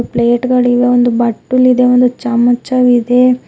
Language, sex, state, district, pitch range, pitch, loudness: Kannada, female, Karnataka, Bidar, 240-250 Hz, 245 Hz, -11 LUFS